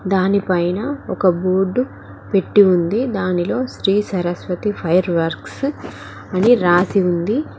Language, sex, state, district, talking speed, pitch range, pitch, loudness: Telugu, female, Telangana, Mahabubabad, 105 wpm, 180-210 Hz, 190 Hz, -18 LUFS